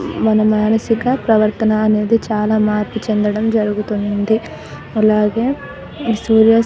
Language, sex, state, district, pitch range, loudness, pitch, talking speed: Telugu, female, Telangana, Nalgonda, 210-225 Hz, -16 LUFS, 215 Hz, 100 wpm